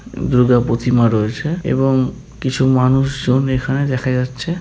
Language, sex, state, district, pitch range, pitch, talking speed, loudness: Bengali, male, West Bengal, North 24 Parganas, 125-135 Hz, 130 Hz, 115 wpm, -16 LUFS